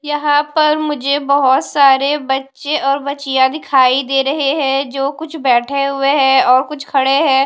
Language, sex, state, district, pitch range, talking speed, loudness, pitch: Hindi, female, Odisha, Khordha, 270-290 Hz, 170 wpm, -14 LUFS, 275 Hz